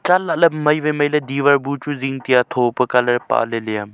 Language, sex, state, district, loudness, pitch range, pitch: Wancho, male, Arunachal Pradesh, Longding, -18 LUFS, 125-150 Hz, 140 Hz